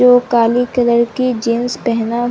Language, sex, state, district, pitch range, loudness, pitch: Hindi, female, Chhattisgarh, Bilaspur, 235-245 Hz, -15 LUFS, 240 Hz